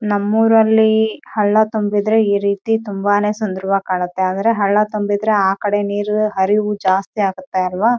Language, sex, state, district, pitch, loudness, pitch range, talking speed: Kannada, female, Karnataka, Raichur, 205 Hz, -16 LUFS, 195-215 Hz, 135 wpm